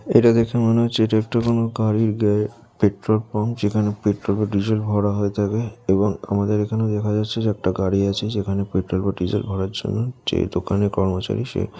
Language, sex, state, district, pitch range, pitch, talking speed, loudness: Bengali, male, West Bengal, Jalpaiguri, 100-110 Hz, 105 Hz, 180 wpm, -21 LUFS